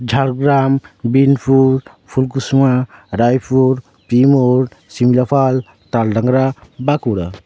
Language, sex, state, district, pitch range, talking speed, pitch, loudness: Bengali, male, West Bengal, Jhargram, 120-135 Hz, 70 wpm, 130 Hz, -15 LUFS